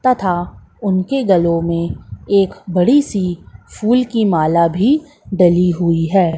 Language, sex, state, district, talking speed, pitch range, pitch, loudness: Hindi, female, Madhya Pradesh, Katni, 130 wpm, 170-225 Hz, 185 Hz, -15 LUFS